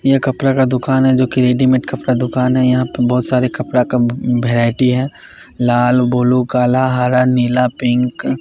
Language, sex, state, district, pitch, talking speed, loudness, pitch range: Hindi, male, Bihar, Katihar, 125 Hz, 185 wpm, -14 LUFS, 125-130 Hz